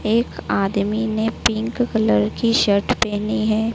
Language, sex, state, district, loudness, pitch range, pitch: Hindi, female, Madhya Pradesh, Dhar, -20 LUFS, 210-230 Hz, 220 Hz